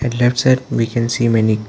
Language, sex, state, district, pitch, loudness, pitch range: English, male, Arunachal Pradesh, Lower Dibang Valley, 120 Hz, -16 LUFS, 115-125 Hz